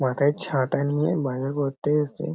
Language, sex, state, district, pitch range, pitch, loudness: Bengali, male, West Bengal, North 24 Parganas, 135-150 Hz, 145 Hz, -24 LUFS